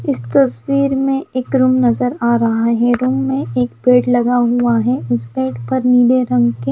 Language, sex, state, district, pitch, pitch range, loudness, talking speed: Hindi, female, Himachal Pradesh, Shimla, 245 Hz, 230-260 Hz, -15 LUFS, 195 wpm